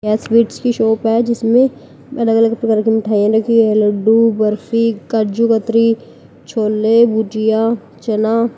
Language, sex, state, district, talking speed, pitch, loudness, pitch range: Hindi, female, Uttar Pradesh, Lalitpur, 145 wpm, 225 Hz, -14 LUFS, 220-230 Hz